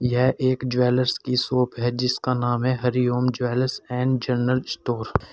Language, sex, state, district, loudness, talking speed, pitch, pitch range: Hindi, male, Uttar Pradesh, Saharanpur, -23 LUFS, 170 wpm, 125 Hz, 125-130 Hz